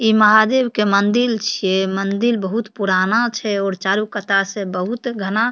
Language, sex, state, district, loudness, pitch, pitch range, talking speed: Maithili, female, Bihar, Supaul, -17 LUFS, 210 Hz, 195-230 Hz, 175 wpm